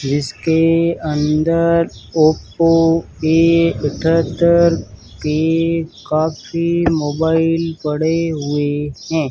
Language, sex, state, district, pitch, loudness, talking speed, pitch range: Hindi, male, Rajasthan, Barmer, 160 Hz, -16 LUFS, 70 wpm, 150-165 Hz